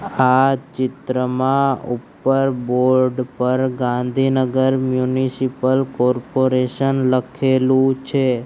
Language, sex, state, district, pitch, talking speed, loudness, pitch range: Gujarati, male, Gujarat, Gandhinagar, 130 Hz, 70 wpm, -18 LUFS, 125-135 Hz